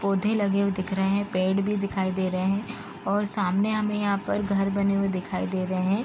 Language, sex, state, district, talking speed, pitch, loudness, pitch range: Hindi, female, Uttar Pradesh, Gorakhpur, 240 wpm, 195 Hz, -25 LUFS, 190-205 Hz